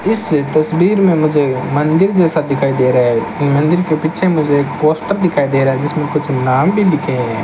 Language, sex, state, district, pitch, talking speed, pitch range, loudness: Hindi, male, Rajasthan, Bikaner, 150 Hz, 200 wpm, 140-175 Hz, -14 LUFS